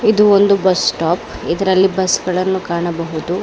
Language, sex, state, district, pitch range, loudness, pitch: Kannada, female, Karnataka, Bangalore, 170-195 Hz, -15 LUFS, 185 Hz